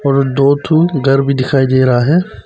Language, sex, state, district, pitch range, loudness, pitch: Hindi, male, Arunachal Pradesh, Papum Pare, 130-145 Hz, -12 LUFS, 140 Hz